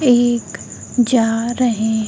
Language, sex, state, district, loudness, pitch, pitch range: Hindi, female, Bihar, Begusarai, -17 LUFS, 240 Hz, 225-245 Hz